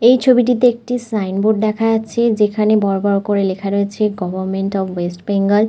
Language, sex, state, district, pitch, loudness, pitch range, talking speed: Bengali, female, West Bengal, North 24 Parganas, 210 Hz, -16 LUFS, 195-225 Hz, 190 wpm